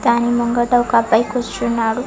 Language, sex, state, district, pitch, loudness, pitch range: Telugu, female, Telangana, Karimnagar, 235 Hz, -17 LUFS, 230-240 Hz